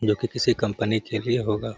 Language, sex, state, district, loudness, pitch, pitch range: Hindi, male, Bihar, Gaya, -24 LUFS, 115 Hz, 110-120 Hz